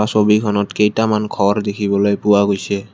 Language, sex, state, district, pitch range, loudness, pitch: Assamese, male, Assam, Kamrup Metropolitan, 100-105 Hz, -16 LUFS, 105 Hz